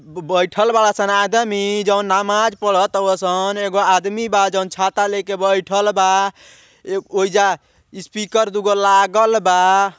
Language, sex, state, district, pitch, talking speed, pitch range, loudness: Bhojpuri, male, Uttar Pradesh, Ghazipur, 200 Hz, 145 wpm, 190-205 Hz, -16 LUFS